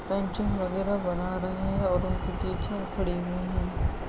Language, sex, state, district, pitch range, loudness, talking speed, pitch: Hindi, male, Bihar, Sitamarhi, 180-195 Hz, -30 LUFS, 160 wpm, 185 Hz